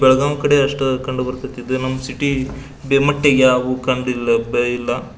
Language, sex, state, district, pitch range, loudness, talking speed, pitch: Kannada, male, Karnataka, Belgaum, 125-140 Hz, -17 LUFS, 70 wpm, 130 Hz